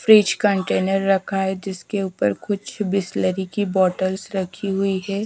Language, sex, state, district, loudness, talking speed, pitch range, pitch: Hindi, female, Madhya Pradesh, Dhar, -21 LUFS, 150 wpm, 190-200 Hz, 195 Hz